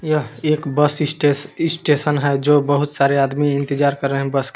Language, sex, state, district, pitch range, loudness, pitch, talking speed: Hindi, male, Jharkhand, Palamu, 140-150 Hz, -18 LUFS, 145 Hz, 210 wpm